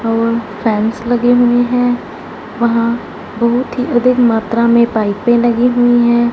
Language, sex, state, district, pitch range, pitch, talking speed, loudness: Hindi, female, Punjab, Fazilka, 230-245 Hz, 235 Hz, 140 wpm, -13 LUFS